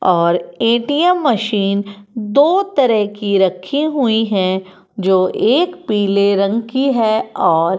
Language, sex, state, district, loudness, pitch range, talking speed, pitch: Hindi, female, Uttar Pradesh, Etah, -15 LUFS, 195-260 Hz, 125 wpm, 210 Hz